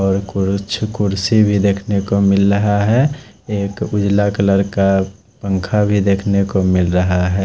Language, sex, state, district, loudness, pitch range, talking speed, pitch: Hindi, male, Odisha, Khordha, -16 LUFS, 95-105 Hz, 155 wpm, 100 Hz